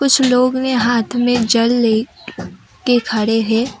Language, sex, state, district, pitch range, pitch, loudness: Hindi, female, Assam, Kamrup Metropolitan, 225-250 Hz, 240 Hz, -15 LUFS